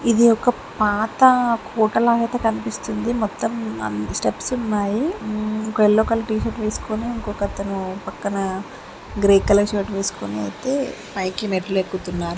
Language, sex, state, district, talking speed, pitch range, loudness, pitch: Telugu, female, Andhra Pradesh, Srikakulam, 120 wpm, 195-230 Hz, -21 LUFS, 215 Hz